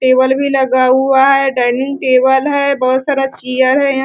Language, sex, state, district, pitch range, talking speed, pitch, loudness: Hindi, female, Bihar, Sitamarhi, 260-275 Hz, 205 wpm, 265 Hz, -12 LUFS